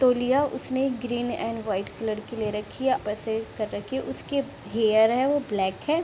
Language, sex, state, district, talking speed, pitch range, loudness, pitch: Hindi, female, Bihar, Begusarai, 210 wpm, 215-265 Hz, -26 LUFS, 230 Hz